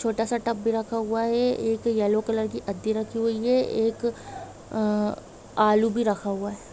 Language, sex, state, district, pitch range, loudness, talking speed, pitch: Hindi, female, Jharkhand, Jamtara, 215-230 Hz, -25 LUFS, 195 wpm, 225 Hz